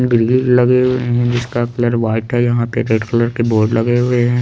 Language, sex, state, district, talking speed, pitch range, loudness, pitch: Hindi, male, Chandigarh, Chandigarh, 230 wpm, 115-125 Hz, -15 LUFS, 120 Hz